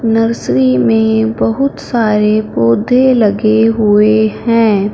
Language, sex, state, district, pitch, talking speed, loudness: Hindi, female, Punjab, Fazilka, 215 Hz, 95 wpm, -11 LUFS